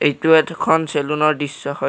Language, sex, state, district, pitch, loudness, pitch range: Assamese, male, Assam, Kamrup Metropolitan, 150 Hz, -17 LUFS, 145-160 Hz